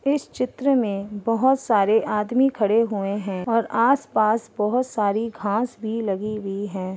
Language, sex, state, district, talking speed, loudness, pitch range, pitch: Hindi, female, Uttar Pradesh, Ghazipur, 165 wpm, -22 LUFS, 205-240 Hz, 220 Hz